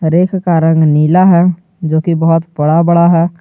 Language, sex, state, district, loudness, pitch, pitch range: Hindi, male, Jharkhand, Garhwa, -11 LUFS, 170 Hz, 160-175 Hz